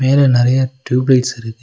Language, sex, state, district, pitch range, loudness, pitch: Tamil, male, Tamil Nadu, Nilgiris, 125-130 Hz, -14 LUFS, 130 Hz